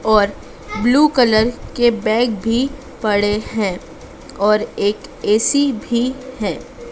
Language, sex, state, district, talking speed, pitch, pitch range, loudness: Hindi, female, Madhya Pradesh, Dhar, 115 wpm, 225 Hz, 210-255 Hz, -17 LUFS